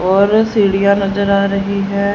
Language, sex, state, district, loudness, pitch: Hindi, female, Haryana, Rohtak, -14 LUFS, 200 Hz